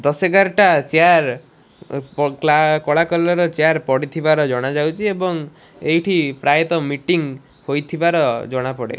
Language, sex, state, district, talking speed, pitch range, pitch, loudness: Odia, male, Odisha, Malkangiri, 140 wpm, 140-170 Hz, 155 Hz, -17 LUFS